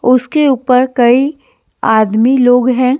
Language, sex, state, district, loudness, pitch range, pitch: Hindi, female, Haryana, Jhajjar, -11 LUFS, 245-265 Hz, 250 Hz